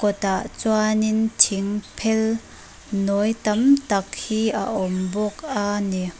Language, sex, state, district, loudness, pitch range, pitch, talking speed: Mizo, female, Mizoram, Aizawl, -22 LUFS, 200-220 Hz, 210 Hz, 145 wpm